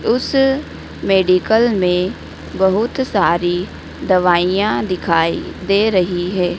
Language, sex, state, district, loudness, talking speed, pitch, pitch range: Hindi, female, Madhya Pradesh, Dhar, -16 LUFS, 90 wpm, 185 Hz, 180-215 Hz